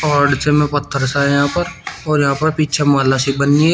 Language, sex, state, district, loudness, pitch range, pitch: Hindi, male, Uttar Pradesh, Shamli, -15 LUFS, 140-150 Hz, 145 Hz